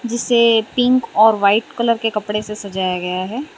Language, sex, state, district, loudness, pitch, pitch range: Hindi, female, Gujarat, Valsad, -17 LUFS, 225 Hz, 205-235 Hz